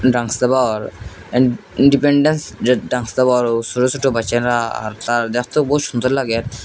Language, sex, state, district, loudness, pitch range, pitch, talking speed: Bengali, male, Assam, Hailakandi, -17 LUFS, 120-135 Hz, 125 Hz, 80 wpm